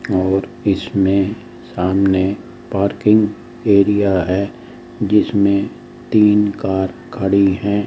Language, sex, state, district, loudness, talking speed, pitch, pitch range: Hindi, male, Rajasthan, Jaipur, -16 LUFS, 85 wpm, 100 Hz, 95-105 Hz